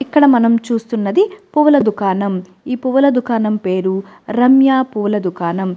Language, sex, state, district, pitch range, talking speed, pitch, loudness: Telugu, female, Telangana, Nalgonda, 195-265 Hz, 125 wpm, 230 Hz, -15 LUFS